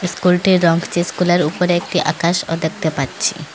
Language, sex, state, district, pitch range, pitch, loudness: Bengali, female, Assam, Hailakandi, 165-180 Hz, 175 Hz, -17 LUFS